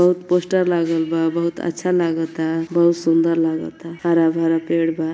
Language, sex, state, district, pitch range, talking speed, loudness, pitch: Bhojpuri, female, Uttar Pradesh, Ghazipur, 165-170 Hz, 150 wpm, -19 LUFS, 165 Hz